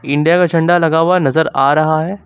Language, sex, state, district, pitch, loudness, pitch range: Hindi, male, Uttar Pradesh, Lucknow, 160 Hz, -13 LUFS, 155-175 Hz